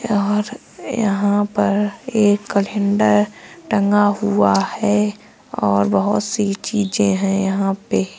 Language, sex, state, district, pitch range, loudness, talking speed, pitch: Hindi, female, Uttar Pradesh, Saharanpur, 195-210 Hz, -18 LUFS, 115 wpm, 205 Hz